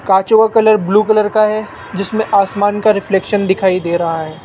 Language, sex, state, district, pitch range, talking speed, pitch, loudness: Hindi, male, Rajasthan, Jaipur, 190-215 Hz, 200 wpm, 200 Hz, -13 LUFS